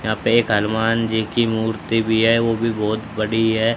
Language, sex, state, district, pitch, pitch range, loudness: Hindi, male, Haryana, Charkhi Dadri, 110 Hz, 110-115 Hz, -19 LUFS